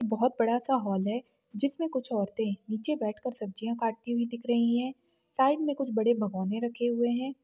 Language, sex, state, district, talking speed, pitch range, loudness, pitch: Hindi, female, Maharashtra, Dhule, 195 wpm, 220-255 Hz, -30 LUFS, 235 Hz